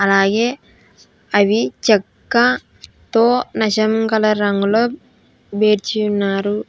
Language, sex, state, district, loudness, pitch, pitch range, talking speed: Telugu, female, Telangana, Hyderabad, -17 LUFS, 215 Hz, 205-225 Hz, 80 wpm